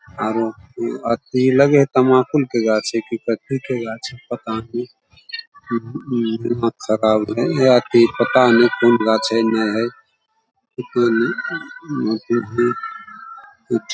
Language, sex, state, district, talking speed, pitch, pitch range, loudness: Maithili, male, Bihar, Samastipur, 115 wpm, 120 Hz, 115-140 Hz, -18 LUFS